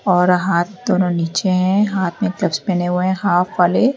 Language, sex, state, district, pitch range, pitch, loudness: Hindi, female, Uttar Pradesh, Lalitpur, 175-190 Hz, 185 Hz, -17 LUFS